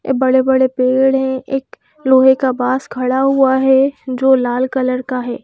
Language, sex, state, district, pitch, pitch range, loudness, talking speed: Hindi, female, Madhya Pradesh, Bhopal, 260 Hz, 255-265 Hz, -14 LUFS, 185 wpm